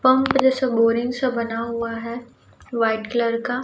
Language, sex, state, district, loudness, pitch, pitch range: Hindi, female, Chhattisgarh, Raipur, -21 LUFS, 235 Hz, 230-255 Hz